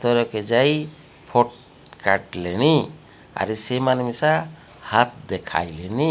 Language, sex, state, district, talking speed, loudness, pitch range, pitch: Odia, male, Odisha, Malkangiri, 90 wpm, -22 LUFS, 105-150 Hz, 120 Hz